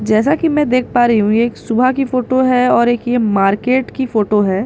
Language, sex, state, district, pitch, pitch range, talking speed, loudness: Hindi, female, Bihar, Katihar, 240 Hz, 215-260 Hz, 245 wpm, -14 LUFS